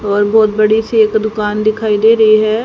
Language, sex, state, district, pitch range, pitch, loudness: Hindi, female, Haryana, Rohtak, 210-220 Hz, 215 Hz, -12 LUFS